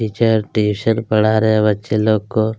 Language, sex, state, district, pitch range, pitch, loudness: Hindi, male, Chhattisgarh, Kabirdham, 105-110 Hz, 110 Hz, -16 LUFS